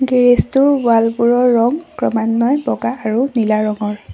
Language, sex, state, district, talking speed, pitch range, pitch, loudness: Assamese, female, Assam, Sonitpur, 145 wpm, 215-255 Hz, 235 Hz, -15 LUFS